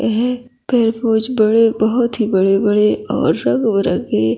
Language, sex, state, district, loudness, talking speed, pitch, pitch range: Hindi, female, Chhattisgarh, Kabirdham, -15 LUFS, 110 wpm, 220 Hz, 205-240 Hz